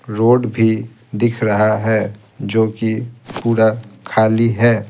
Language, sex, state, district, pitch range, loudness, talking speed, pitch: Hindi, male, Bihar, Patna, 110-115 Hz, -16 LUFS, 120 wpm, 110 Hz